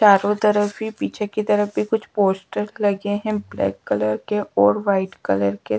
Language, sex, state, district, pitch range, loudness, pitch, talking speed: Hindi, female, Bihar, Patna, 185-210 Hz, -21 LUFS, 205 Hz, 185 wpm